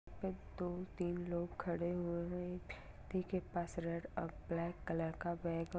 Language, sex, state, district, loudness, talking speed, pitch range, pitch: Hindi, female, Bihar, Darbhanga, -43 LUFS, 155 wpm, 170-180 Hz, 175 Hz